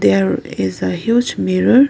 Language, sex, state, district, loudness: English, female, Arunachal Pradesh, Lower Dibang Valley, -17 LUFS